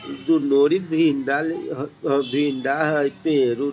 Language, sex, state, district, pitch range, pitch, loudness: Bajjika, male, Bihar, Vaishali, 140-155 Hz, 140 Hz, -21 LUFS